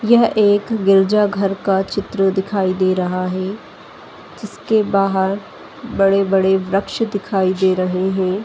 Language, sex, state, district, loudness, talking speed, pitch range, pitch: Hindi, female, Uttar Pradesh, Etah, -17 LUFS, 135 wpm, 190-205 Hz, 195 Hz